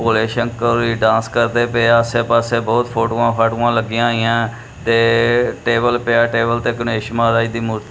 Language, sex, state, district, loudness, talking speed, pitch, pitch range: Punjabi, male, Punjab, Kapurthala, -16 LUFS, 180 wpm, 115 Hz, 115-120 Hz